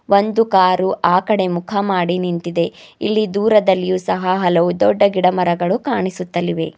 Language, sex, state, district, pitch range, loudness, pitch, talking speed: Kannada, female, Karnataka, Bidar, 175-200 Hz, -17 LUFS, 185 Hz, 135 wpm